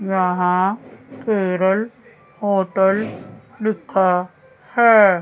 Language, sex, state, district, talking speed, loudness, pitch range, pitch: Hindi, female, Chandigarh, Chandigarh, 55 wpm, -18 LUFS, 185-220 Hz, 195 Hz